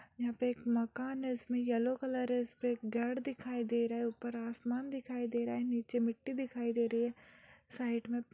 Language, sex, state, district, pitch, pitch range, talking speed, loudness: Hindi, female, Bihar, Jahanabad, 240 Hz, 235-250 Hz, 225 wpm, -37 LUFS